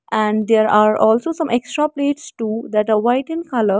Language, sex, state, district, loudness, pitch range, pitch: English, female, Haryana, Rohtak, -17 LUFS, 215-285 Hz, 225 Hz